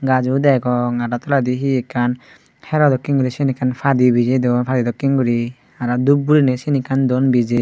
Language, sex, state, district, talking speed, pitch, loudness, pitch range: Chakma, female, Tripura, Dhalai, 195 wpm, 130 Hz, -17 LUFS, 125-135 Hz